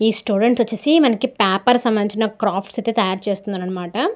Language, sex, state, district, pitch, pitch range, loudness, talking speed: Telugu, female, Andhra Pradesh, Guntur, 220 Hz, 200-240 Hz, -18 LUFS, 175 wpm